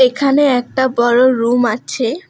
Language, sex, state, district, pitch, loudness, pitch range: Bengali, female, West Bengal, Alipurduar, 250 Hz, -14 LUFS, 240-265 Hz